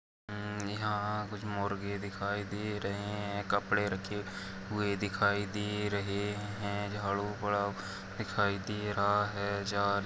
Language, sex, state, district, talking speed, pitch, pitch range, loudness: Hindi, male, Chhattisgarh, Sarguja, 125 wpm, 100 Hz, 100-105 Hz, -34 LUFS